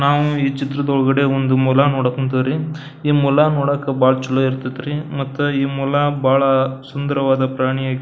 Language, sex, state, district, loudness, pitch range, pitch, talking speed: Kannada, male, Karnataka, Belgaum, -18 LUFS, 130-145 Hz, 135 Hz, 155 wpm